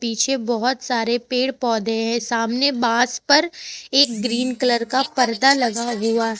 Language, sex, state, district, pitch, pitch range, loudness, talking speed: Hindi, female, Jharkhand, Ranchi, 240 Hz, 230-260 Hz, -19 LUFS, 160 wpm